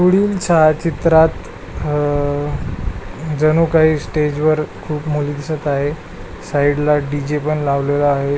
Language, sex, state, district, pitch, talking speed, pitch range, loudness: Marathi, male, Maharashtra, Pune, 150 Hz, 105 wpm, 145-155 Hz, -17 LUFS